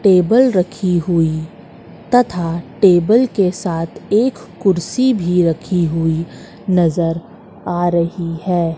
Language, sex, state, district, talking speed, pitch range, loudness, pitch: Hindi, female, Madhya Pradesh, Katni, 110 wpm, 170-205 Hz, -16 LUFS, 180 Hz